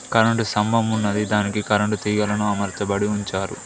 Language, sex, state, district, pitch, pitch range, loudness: Telugu, male, Telangana, Mahabubabad, 105 Hz, 105-110 Hz, -21 LUFS